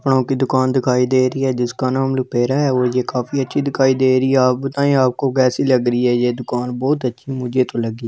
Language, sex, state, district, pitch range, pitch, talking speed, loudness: Hindi, male, Delhi, New Delhi, 125-135 Hz, 130 Hz, 245 wpm, -17 LUFS